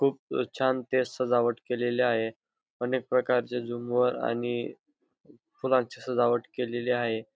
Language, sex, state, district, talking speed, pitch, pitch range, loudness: Marathi, male, Maharashtra, Dhule, 115 wpm, 125 Hz, 120-130 Hz, -28 LUFS